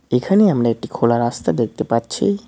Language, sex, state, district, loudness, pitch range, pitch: Bengali, male, West Bengal, Cooch Behar, -18 LUFS, 115-195 Hz, 120 Hz